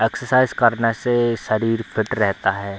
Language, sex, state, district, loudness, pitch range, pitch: Hindi, male, Bihar, Darbhanga, -19 LUFS, 110-120 Hz, 115 Hz